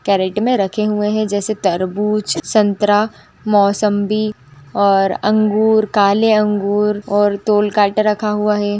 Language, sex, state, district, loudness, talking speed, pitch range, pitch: Hindi, female, Bihar, Purnia, -15 LUFS, 130 wpm, 200-215 Hz, 210 Hz